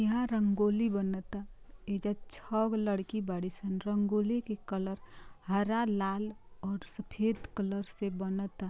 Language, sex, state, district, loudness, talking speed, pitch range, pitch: Bhojpuri, female, Bihar, Gopalganj, -34 LUFS, 130 wpm, 195-215 Hz, 205 Hz